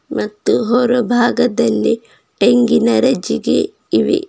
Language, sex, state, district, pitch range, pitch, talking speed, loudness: Kannada, female, Karnataka, Bidar, 240-245 Hz, 245 Hz, 85 wpm, -15 LUFS